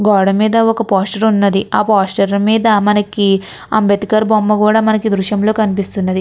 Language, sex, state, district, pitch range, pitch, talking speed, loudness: Telugu, female, Andhra Pradesh, Krishna, 200-215 Hz, 210 Hz, 175 wpm, -13 LUFS